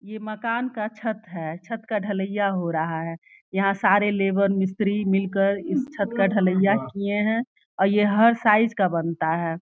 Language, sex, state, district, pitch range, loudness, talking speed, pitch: Hindi, female, Uttar Pradesh, Gorakhpur, 190-215 Hz, -23 LUFS, 180 wpm, 200 Hz